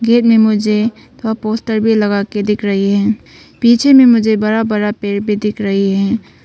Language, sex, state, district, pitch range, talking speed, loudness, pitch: Hindi, female, Arunachal Pradesh, Papum Pare, 205-225 Hz, 175 wpm, -13 LUFS, 215 Hz